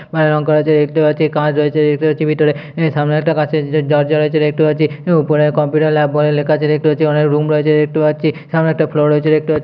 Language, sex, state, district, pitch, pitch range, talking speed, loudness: Bengali, male, West Bengal, Purulia, 150 Hz, 150-155 Hz, 250 wpm, -14 LUFS